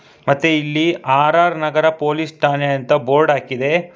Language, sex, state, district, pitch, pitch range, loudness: Kannada, male, Karnataka, Bangalore, 150 Hz, 145-160 Hz, -16 LUFS